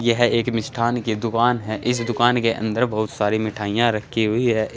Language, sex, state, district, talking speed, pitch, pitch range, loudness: Hindi, male, Uttar Pradesh, Saharanpur, 215 wpm, 115 Hz, 110-120 Hz, -21 LUFS